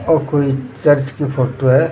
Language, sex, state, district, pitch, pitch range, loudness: Rajasthani, male, Rajasthan, Churu, 140 Hz, 130-145 Hz, -16 LUFS